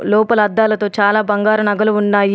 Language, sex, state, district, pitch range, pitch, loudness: Telugu, female, Telangana, Adilabad, 205-215 Hz, 210 Hz, -14 LUFS